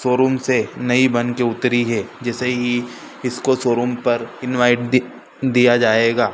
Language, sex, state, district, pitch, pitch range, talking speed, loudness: Hindi, male, Madhya Pradesh, Dhar, 125 Hz, 120-125 Hz, 150 wpm, -18 LUFS